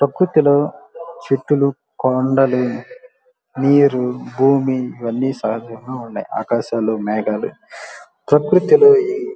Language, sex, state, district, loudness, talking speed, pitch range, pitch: Telugu, male, Andhra Pradesh, Guntur, -17 LUFS, 85 wpm, 125-170 Hz, 135 Hz